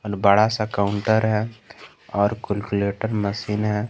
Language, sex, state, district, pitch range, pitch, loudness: Hindi, male, Jharkhand, Garhwa, 100-110 Hz, 105 Hz, -22 LUFS